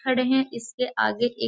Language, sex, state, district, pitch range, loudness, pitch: Hindi, female, Bihar, Gaya, 235-260 Hz, -25 LUFS, 250 Hz